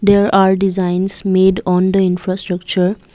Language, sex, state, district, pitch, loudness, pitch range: English, female, Assam, Kamrup Metropolitan, 190 Hz, -14 LUFS, 185-195 Hz